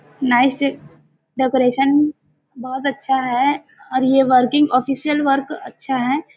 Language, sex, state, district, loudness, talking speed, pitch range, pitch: Hindi, female, Chhattisgarh, Bilaspur, -18 LUFS, 115 wpm, 255-280 Hz, 270 Hz